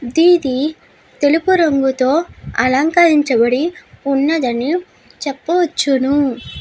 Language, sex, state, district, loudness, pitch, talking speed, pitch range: Telugu, female, Andhra Pradesh, Guntur, -15 LUFS, 290 Hz, 55 wpm, 265-330 Hz